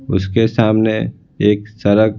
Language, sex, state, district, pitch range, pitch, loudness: Hindi, male, Bihar, Patna, 105-110 Hz, 110 Hz, -16 LUFS